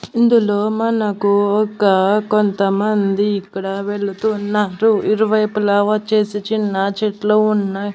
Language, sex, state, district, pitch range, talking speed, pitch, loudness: Telugu, female, Andhra Pradesh, Annamaya, 200-215 Hz, 85 wpm, 210 Hz, -17 LUFS